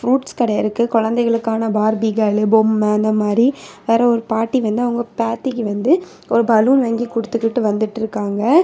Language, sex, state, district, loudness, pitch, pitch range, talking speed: Tamil, female, Tamil Nadu, Kanyakumari, -17 LUFS, 225 Hz, 215-240 Hz, 155 wpm